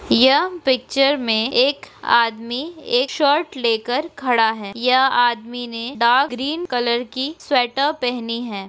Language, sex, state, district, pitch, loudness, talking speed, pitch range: Hindi, female, Bihar, East Champaran, 250 Hz, -19 LUFS, 140 wpm, 235-275 Hz